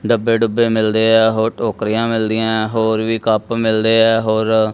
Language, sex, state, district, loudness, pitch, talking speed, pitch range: Punjabi, male, Punjab, Kapurthala, -15 LUFS, 110 Hz, 190 wpm, 110-115 Hz